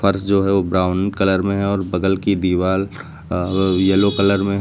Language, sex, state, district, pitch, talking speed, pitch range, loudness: Hindi, male, Uttar Pradesh, Lucknow, 95 Hz, 220 wpm, 95-100 Hz, -18 LUFS